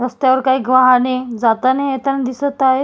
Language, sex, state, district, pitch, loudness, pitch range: Marathi, female, Maharashtra, Solapur, 260 Hz, -15 LUFS, 255-270 Hz